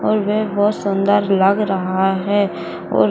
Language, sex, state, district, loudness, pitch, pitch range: Hindi, female, Bihar, Saran, -17 LUFS, 195 Hz, 190-205 Hz